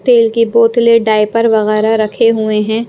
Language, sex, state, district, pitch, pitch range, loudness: Hindi, female, Punjab, Pathankot, 225 Hz, 215-230 Hz, -11 LUFS